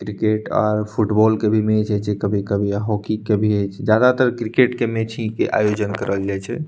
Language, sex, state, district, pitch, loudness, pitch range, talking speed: Maithili, male, Bihar, Purnia, 110 Hz, -19 LUFS, 105-110 Hz, 225 wpm